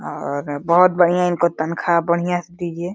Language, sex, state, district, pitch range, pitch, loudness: Hindi, male, Uttar Pradesh, Deoria, 170-175 Hz, 170 Hz, -19 LUFS